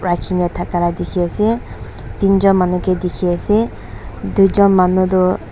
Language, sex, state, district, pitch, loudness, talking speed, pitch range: Nagamese, female, Nagaland, Dimapur, 185 Hz, -16 LUFS, 140 wpm, 175-195 Hz